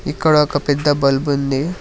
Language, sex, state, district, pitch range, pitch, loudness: Telugu, male, Telangana, Hyderabad, 140-150 Hz, 145 Hz, -16 LUFS